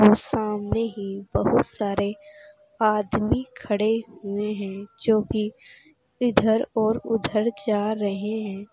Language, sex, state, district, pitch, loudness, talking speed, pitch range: Hindi, female, Uttar Pradesh, Saharanpur, 215 Hz, -24 LUFS, 115 wpm, 205-225 Hz